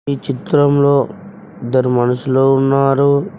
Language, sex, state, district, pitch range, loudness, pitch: Telugu, male, Telangana, Mahabubabad, 130-145 Hz, -14 LUFS, 140 Hz